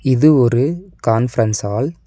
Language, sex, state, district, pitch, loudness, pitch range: Tamil, male, Tamil Nadu, Nilgiris, 130 Hz, -16 LUFS, 115-155 Hz